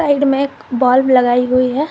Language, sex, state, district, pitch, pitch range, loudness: Hindi, female, Jharkhand, Garhwa, 260 Hz, 250-280 Hz, -14 LUFS